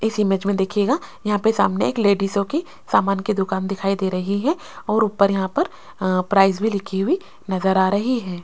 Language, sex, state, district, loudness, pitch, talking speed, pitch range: Hindi, female, Rajasthan, Jaipur, -21 LUFS, 200 Hz, 205 wpm, 190-215 Hz